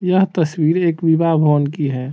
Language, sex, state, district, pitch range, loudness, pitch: Hindi, male, Bihar, Saran, 150-170 Hz, -16 LUFS, 160 Hz